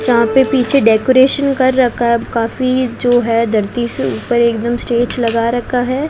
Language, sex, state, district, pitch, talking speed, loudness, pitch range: Hindi, female, Rajasthan, Bikaner, 245 Hz, 175 wpm, -13 LUFS, 235-255 Hz